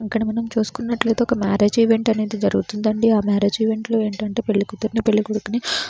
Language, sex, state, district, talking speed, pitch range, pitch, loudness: Telugu, female, Andhra Pradesh, Srikakulam, 195 wpm, 210-230 Hz, 220 Hz, -20 LUFS